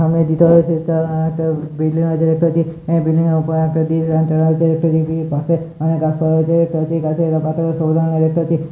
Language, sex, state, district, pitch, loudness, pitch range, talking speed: Bengali, male, West Bengal, Purulia, 160 Hz, -16 LUFS, 160-165 Hz, 180 wpm